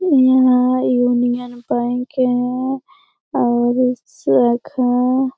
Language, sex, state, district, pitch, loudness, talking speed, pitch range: Hindi, female, Bihar, Lakhisarai, 250 Hz, -17 LUFS, 80 wpm, 245-260 Hz